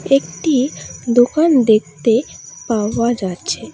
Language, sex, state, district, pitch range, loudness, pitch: Bengali, female, West Bengal, Alipurduar, 215-270 Hz, -16 LUFS, 235 Hz